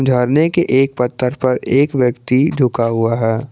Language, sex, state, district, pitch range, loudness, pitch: Hindi, male, Jharkhand, Garhwa, 120-135 Hz, -15 LUFS, 125 Hz